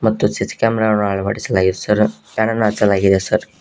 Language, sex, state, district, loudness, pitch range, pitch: Kannada, male, Karnataka, Koppal, -17 LUFS, 100-110 Hz, 105 Hz